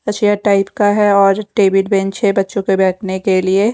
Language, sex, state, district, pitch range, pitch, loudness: Hindi, female, Odisha, Khordha, 195-205 Hz, 195 Hz, -14 LUFS